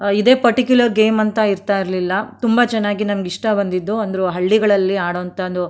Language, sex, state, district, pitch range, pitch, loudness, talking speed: Kannada, female, Karnataka, Mysore, 190-220 Hz, 205 Hz, -17 LUFS, 170 wpm